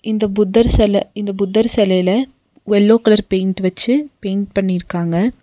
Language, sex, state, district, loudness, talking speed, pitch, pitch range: Tamil, female, Tamil Nadu, Nilgiris, -16 LUFS, 130 wpm, 210 Hz, 190-225 Hz